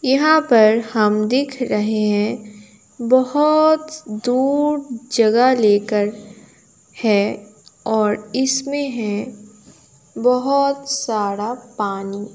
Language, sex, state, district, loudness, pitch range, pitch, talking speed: Hindi, female, Uttar Pradesh, Hamirpur, -18 LUFS, 210-265 Hz, 225 Hz, 85 wpm